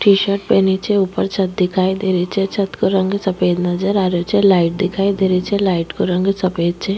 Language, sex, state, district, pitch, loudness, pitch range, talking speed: Rajasthani, female, Rajasthan, Nagaur, 190 Hz, -17 LUFS, 180-195 Hz, 240 wpm